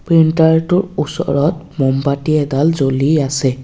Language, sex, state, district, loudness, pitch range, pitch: Assamese, male, Assam, Kamrup Metropolitan, -15 LUFS, 140-160 Hz, 150 Hz